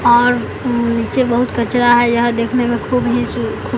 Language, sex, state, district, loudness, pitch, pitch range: Hindi, male, Bihar, Katihar, -15 LUFS, 240 Hz, 235-245 Hz